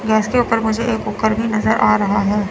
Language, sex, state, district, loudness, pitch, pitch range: Hindi, female, Chandigarh, Chandigarh, -17 LUFS, 220 Hz, 210-225 Hz